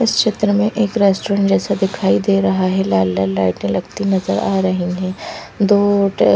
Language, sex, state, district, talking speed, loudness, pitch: Hindi, female, Punjab, Fazilka, 190 wpm, -16 LUFS, 185 Hz